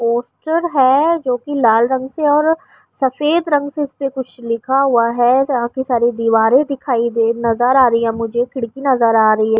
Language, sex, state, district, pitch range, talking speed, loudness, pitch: Urdu, female, Uttar Pradesh, Budaun, 235-275 Hz, 210 wpm, -15 LUFS, 250 Hz